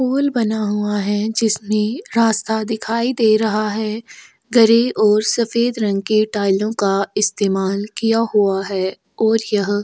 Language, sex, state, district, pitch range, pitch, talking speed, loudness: Hindi, female, Chhattisgarh, Korba, 205-225 Hz, 215 Hz, 140 wpm, -18 LUFS